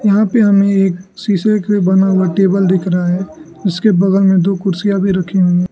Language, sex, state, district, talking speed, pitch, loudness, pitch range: Hindi, male, Arunachal Pradesh, Lower Dibang Valley, 210 wpm, 190 Hz, -13 LUFS, 185-200 Hz